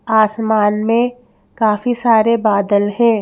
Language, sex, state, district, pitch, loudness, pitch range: Hindi, female, Madhya Pradesh, Bhopal, 220 Hz, -15 LUFS, 210-235 Hz